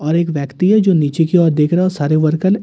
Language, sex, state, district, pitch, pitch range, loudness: Hindi, male, Delhi, New Delhi, 165 Hz, 155-185 Hz, -14 LUFS